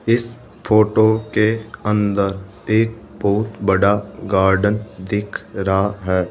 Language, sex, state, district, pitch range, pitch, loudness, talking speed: Hindi, male, Rajasthan, Jaipur, 95-110 Hz, 105 Hz, -18 LUFS, 105 wpm